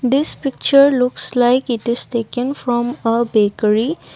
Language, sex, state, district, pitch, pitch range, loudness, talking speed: English, female, Assam, Kamrup Metropolitan, 245 Hz, 235-270 Hz, -16 LUFS, 145 wpm